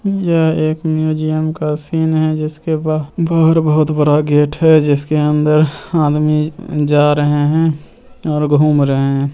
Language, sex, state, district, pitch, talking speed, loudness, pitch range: Hindi, male, Bihar, Purnia, 155 Hz, 140 wpm, -14 LUFS, 150-160 Hz